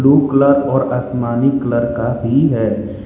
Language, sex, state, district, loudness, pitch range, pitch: Hindi, male, Uttar Pradesh, Lucknow, -15 LUFS, 120-140 Hz, 125 Hz